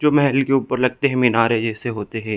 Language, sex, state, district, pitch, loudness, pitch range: Hindi, male, Chhattisgarh, Bilaspur, 125 Hz, -19 LUFS, 115-135 Hz